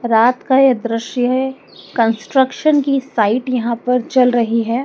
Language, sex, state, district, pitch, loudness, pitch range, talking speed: Hindi, female, Madhya Pradesh, Dhar, 250 Hz, -16 LUFS, 230-265 Hz, 160 wpm